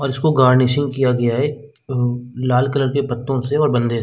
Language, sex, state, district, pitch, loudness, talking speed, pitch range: Hindi, male, Jharkhand, Sahebganj, 130 Hz, -18 LUFS, 225 wpm, 125-140 Hz